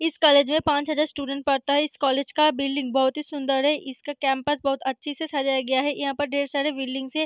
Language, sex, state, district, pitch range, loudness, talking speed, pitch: Hindi, female, Bihar, Araria, 275-295 Hz, -24 LUFS, 250 wpm, 280 Hz